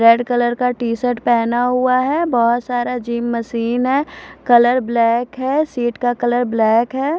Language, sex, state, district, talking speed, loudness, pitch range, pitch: Hindi, female, Punjab, Fazilka, 175 wpm, -17 LUFS, 235-255 Hz, 245 Hz